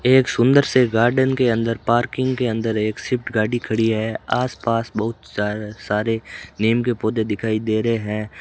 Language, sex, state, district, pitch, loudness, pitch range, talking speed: Hindi, male, Rajasthan, Bikaner, 115 Hz, -20 LUFS, 110-120 Hz, 185 wpm